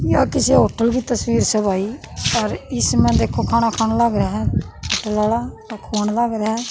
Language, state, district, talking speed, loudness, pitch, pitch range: Haryanvi, Haryana, Rohtak, 195 wpm, -19 LUFS, 225 Hz, 215-235 Hz